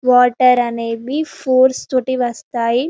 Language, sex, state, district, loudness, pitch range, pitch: Telugu, female, Telangana, Karimnagar, -16 LUFS, 240-260 Hz, 255 Hz